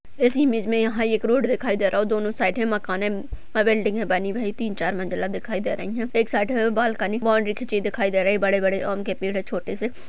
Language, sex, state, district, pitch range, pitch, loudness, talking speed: Hindi, female, Uttar Pradesh, Budaun, 195-225 Hz, 215 Hz, -23 LUFS, 240 wpm